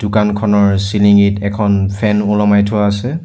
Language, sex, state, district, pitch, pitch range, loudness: Assamese, male, Assam, Sonitpur, 105 Hz, 100-105 Hz, -13 LUFS